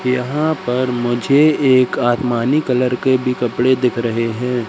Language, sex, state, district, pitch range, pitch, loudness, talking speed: Hindi, male, Madhya Pradesh, Katni, 120-130 Hz, 125 Hz, -16 LUFS, 155 wpm